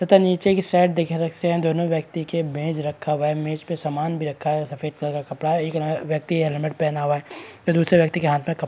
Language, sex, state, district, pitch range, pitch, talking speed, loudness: Hindi, male, Bihar, Araria, 150-170 Hz, 160 Hz, 230 wpm, -22 LUFS